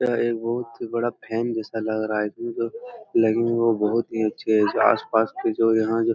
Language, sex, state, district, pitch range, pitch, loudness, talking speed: Hindi, male, Bihar, Jahanabad, 110-115 Hz, 115 Hz, -23 LUFS, 235 wpm